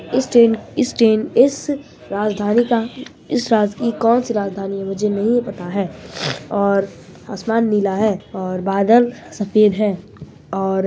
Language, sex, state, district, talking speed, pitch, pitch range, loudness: Hindi, female, Bihar, Araria, 145 wpm, 215 Hz, 200-235 Hz, -18 LUFS